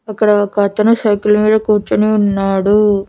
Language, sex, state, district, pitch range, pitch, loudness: Telugu, female, Andhra Pradesh, Annamaya, 205-215 Hz, 210 Hz, -13 LUFS